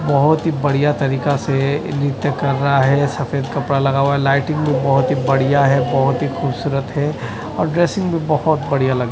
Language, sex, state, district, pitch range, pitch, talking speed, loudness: Hindi, male, Odisha, Nuapada, 135-145 Hz, 140 Hz, 190 wpm, -17 LUFS